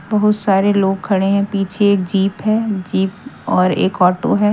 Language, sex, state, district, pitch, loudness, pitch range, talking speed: Hindi, female, Haryana, Jhajjar, 200 Hz, -16 LUFS, 190-210 Hz, 185 wpm